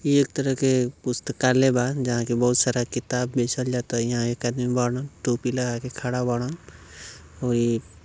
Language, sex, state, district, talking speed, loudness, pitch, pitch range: Bhojpuri, male, Uttar Pradesh, Gorakhpur, 180 wpm, -24 LUFS, 125 Hz, 120-130 Hz